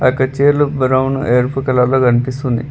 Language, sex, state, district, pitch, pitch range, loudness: Telugu, male, Telangana, Hyderabad, 130 Hz, 125-135 Hz, -14 LUFS